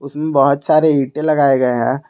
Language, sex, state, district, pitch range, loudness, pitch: Hindi, male, Jharkhand, Garhwa, 135-155 Hz, -15 LUFS, 140 Hz